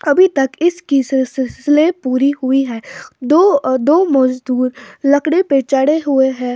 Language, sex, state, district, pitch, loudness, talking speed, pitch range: Hindi, female, Bihar, Patna, 275 Hz, -14 LUFS, 165 wpm, 260-300 Hz